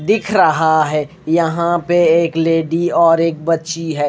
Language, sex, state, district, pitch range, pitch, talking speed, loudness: Hindi, male, Haryana, Rohtak, 160-170 Hz, 165 Hz, 160 wpm, -15 LUFS